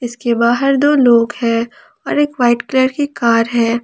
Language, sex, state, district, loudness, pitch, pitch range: Hindi, female, Jharkhand, Ranchi, -14 LUFS, 240 Hz, 235-275 Hz